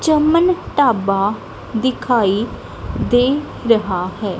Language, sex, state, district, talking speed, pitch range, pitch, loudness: Punjabi, female, Punjab, Kapurthala, 80 wpm, 200-285 Hz, 240 Hz, -17 LUFS